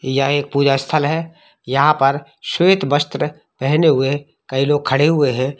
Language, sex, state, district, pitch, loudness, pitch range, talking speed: Hindi, male, Jharkhand, Jamtara, 140 Hz, -17 LUFS, 135-150 Hz, 170 wpm